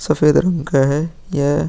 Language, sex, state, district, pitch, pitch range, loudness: Hindi, male, Bihar, Vaishali, 150 Hz, 145-160 Hz, -17 LUFS